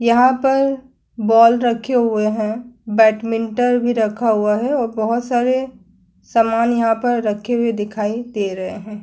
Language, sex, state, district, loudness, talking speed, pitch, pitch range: Hindi, female, Uttar Pradesh, Jyotiba Phule Nagar, -17 LUFS, 155 wpm, 230 Hz, 215-245 Hz